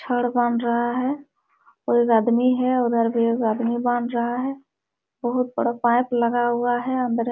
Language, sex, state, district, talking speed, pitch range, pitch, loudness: Hindi, female, Jharkhand, Sahebganj, 195 wpm, 235-250 Hz, 240 Hz, -22 LUFS